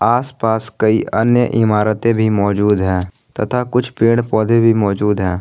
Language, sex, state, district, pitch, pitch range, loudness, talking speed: Hindi, male, Jharkhand, Ranchi, 110 Hz, 105-115 Hz, -15 LUFS, 155 wpm